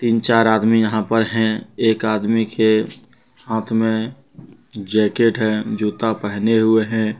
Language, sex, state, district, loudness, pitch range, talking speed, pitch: Hindi, male, Jharkhand, Deoghar, -18 LUFS, 110-115 Hz, 140 wpm, 110 Hz